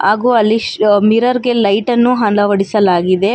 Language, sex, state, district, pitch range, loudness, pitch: Kannada, female, Karnataka, Bangalore, 205-240 Hz, -12 LUFS, 215 Hz